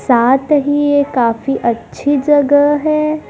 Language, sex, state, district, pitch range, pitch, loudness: Hindi, female, Madhya Pradesh, Dhar, 260-295 Hz, 285 Hz, -13 LUFS